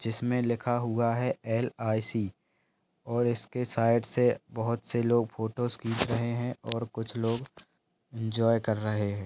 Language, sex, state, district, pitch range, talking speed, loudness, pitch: Hindi, male, Bihar, Bhagalpur, 115-120 Hz, 160 wpm, -30 LUFS, 115 Hz